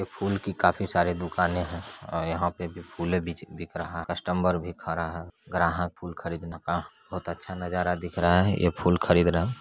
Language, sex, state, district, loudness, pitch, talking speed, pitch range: Hindi, male, Bihar, Saran, -28 LUFS, 90 Hz, 205 wpm, 85-90 Hz